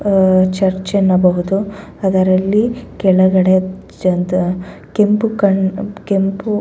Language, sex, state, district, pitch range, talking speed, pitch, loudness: Kannada, female, Karnataka, Bellary, 185-200 Hz, 90 wpm, 190 Hz, -15 LUFS